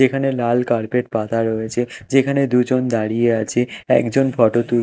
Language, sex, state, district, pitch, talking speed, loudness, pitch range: Bengali, male, Odisha, Malkangiri, 120 Hz, 150 wpm, -18 LUFS, 115-130 Hz